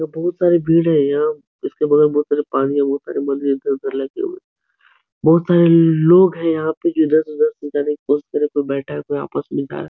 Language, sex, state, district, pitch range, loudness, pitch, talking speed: Hindi, male, Uttar Pradesh, Etah, 145-165 Hz, -17 LUFS, 150 Hz, 250 wpm